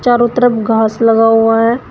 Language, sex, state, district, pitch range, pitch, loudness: Hindi, female, Uttar Pradesh, Shamli, 225-240 Hz, 230 Hz, -11 LUFS